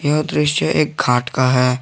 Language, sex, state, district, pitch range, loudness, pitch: Hindi, male, Jharkhand, Garhwa, 80-130 Hz, -17 LUFS, 125 Hz